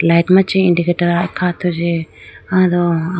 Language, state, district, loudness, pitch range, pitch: Idu Mishmi, Arunachal Pradesh, Lower Dibang Valley, -15 LUFS, 170-180 Hz, 175 Hz